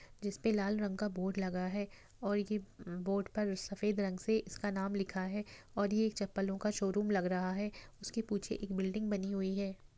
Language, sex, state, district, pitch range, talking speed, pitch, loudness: Hindi, female, Bihar, Sitamarhi, 195-210 Hz, 205 wpm, 200 Hz, -37 LUFS